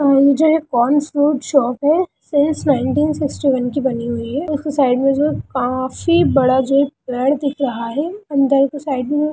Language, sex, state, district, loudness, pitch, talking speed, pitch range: Hindi, male, Bihar, Darbhanga, -17 LUFS, 280 Hz, 185 wpm, 260-295 Hz